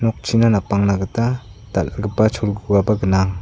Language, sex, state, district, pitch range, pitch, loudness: Garo, male, Meghalaya, South Garo Hills, 95-110 Hz, 105 Hz, -19 LUFS